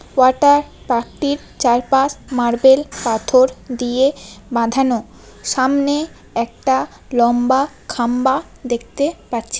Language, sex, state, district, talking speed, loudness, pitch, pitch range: Bengali, female, West Bengal, Paschim Medinipur, 80 wpm, -17 LUFS, 260 Hz, 240-275 Hz